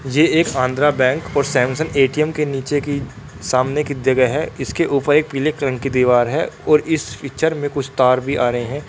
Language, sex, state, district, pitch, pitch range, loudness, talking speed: Hindi, male, Bihar, Purnia, 140 Hz, 130-150 Hz, -18 LUFS, 215 wpm